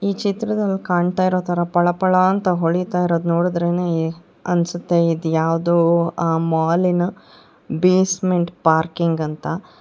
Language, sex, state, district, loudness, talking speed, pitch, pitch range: Kannada, female, Karnataka, Bangalore, -19 LUFS, 100 wpm, 175 Hz, 170-180 Hz